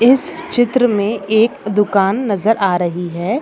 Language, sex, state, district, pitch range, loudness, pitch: Hindi, female, Maharashtra, Nagpur, 195-250 Hz, -16 LUFS, 220 Hz